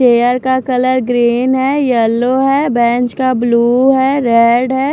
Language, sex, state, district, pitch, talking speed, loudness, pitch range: Hindi, female, Maharashtra, Washim, 250 Hz, 160 wpm, -12 LUFS, 240-260 Hz